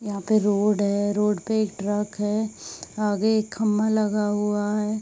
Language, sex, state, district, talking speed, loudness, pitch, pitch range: Hindi, female, Bihar, Saharsa, 190 wpm, -24 LUFS, 210 Hz, 205-215 Hz